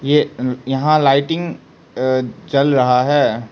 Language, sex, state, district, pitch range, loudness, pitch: Hindi, male, Arunachal Pradesh, Lower Dibang Valley, 125-145 Hz, -16 LUFS, 135 Hz